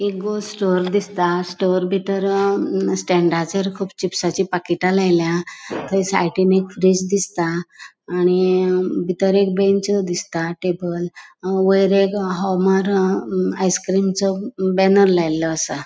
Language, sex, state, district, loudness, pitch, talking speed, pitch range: Konkani, female, Goa, North and South Goa, -19 LUFS, 190 Hz, 115 wpm, 180-195 Hz